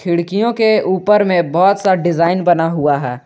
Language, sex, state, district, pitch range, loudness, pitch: Hindi, male, Jharkhand, Garhwa, 170-195 Hz, -14 LUFS, 180 Hz